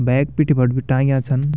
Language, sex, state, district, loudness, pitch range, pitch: Garhwali, male, Uttarakhand, Tehri Garhwal, -18 LUFS, 130-140 Hz, 135 Hz